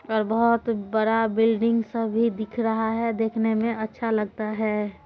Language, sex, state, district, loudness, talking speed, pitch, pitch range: Maithili, female, Bihar, Supaul, -24 LUFS, 165 wpm, 225 Hz, 220-230 Hz